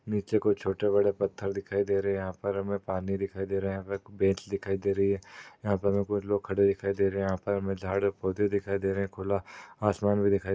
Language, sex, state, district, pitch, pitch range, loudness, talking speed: Hindi, male, Maharashtra, Sindhudurg, 100 Hz, 95-100 Hz, -29 LUFS, 255 wpm